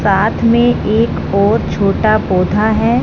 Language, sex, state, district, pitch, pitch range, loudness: Hindi, female, Punjab, Fazilka, 220 Hz, 195-230 Hz, -13 LUFS